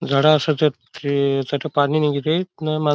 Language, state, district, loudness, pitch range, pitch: Bhili, Maharashtra, Dhule, -20 LUFS, 140-155 Hz, 150 Hz